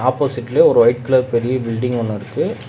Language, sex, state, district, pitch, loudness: Tamil, male, Tamil Nadu, Namakkal, 125 Hz, -17 LUFS